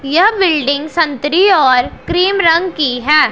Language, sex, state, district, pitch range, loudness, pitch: Hindi, male, Punjab, Pathankot, 285-365 Hz, -12 LUFS, 315 Hz